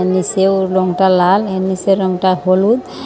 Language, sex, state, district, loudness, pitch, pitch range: Bengali, female, Tripura, Unakoti, -14 LUFS, 190 Hz, 185-195 Hz